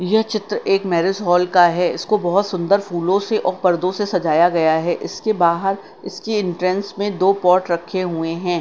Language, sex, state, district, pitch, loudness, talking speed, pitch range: Hindi, female, Bihar, Katihar, 185 Hz, -18 LUFS, 195 wpm, 175-200 Hz